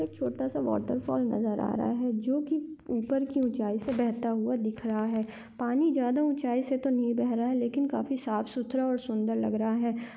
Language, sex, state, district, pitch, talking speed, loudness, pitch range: Hindi, female, Maharashtra, Dhule, 240 Hz, 220 wpm, -30 LUFS, 220-260 Hz